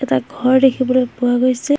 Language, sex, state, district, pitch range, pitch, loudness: Assamese, female, Assam, Hailakandi, 245-260 Hz, 255 Hz, -16 LUFS